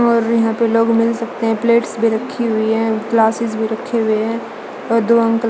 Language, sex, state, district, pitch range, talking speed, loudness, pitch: Hindi, female, Chandigarh, Chandigarh, 225-230 Hz, 230 wpm, -16 LUFS, 230 Hz